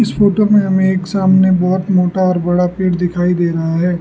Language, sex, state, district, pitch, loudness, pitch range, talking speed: Hindi, male, Arunachal Pradesh, Lower Dibang Valley, 185 Hz, -14 LUFS, 180-190 Hz, 210 wpm